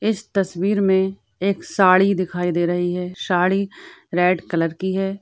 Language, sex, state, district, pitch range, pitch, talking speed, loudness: Hindi, female, Rajasthan, Churu, 180-195 Hz, 190 Hz, 160 wpm, -20 LUFS